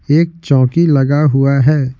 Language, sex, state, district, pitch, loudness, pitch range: Hindi, male, Bihar, Patna, 145 Hz, -12 LUFS, 135-155 Hz